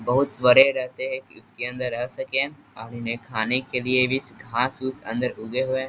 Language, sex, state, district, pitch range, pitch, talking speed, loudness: Hindi, male, Bihar, East Champaran, 120-130 Hz, 125 Hz, 195 wpm, -23 LUFS